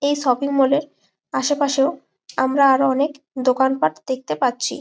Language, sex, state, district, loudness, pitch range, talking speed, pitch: Bengali, female, West Bengal, Malda, -19 LUFS, 260-285 Hz, 150 wpm, 270 Hz